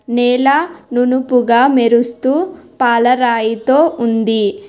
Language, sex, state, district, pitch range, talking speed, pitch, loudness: Telugu, female, Telangana, Hyderabad, 235-275 Hz, 65 wpm, 245 Hz, -13 LUFS